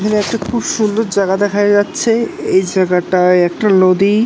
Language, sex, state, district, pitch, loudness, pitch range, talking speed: Bengali, male, West Bengal, North 24 Parganas, 205 Hz, -13 LUFS, 185-220 Hz, 185 wpm